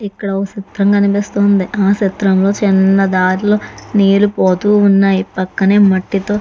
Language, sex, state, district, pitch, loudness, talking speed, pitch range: Telugu, female, Andhra Pradesh, Chittoor, 200 Hz, -13 LUFS, 150 wpm, 195-205 Hz